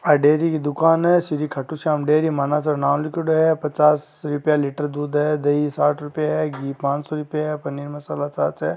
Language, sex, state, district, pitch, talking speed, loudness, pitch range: Hindi, male, Rajasthan, Nagaur, 150 Hz, 210 wpm, -21 LUFS, 145-155 Hz